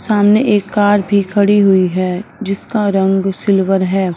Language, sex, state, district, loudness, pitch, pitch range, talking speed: Hindi, female, Punjab, Fazilka, -14 LUFS, 195 Hz, 190-205 Hz, 160 wpm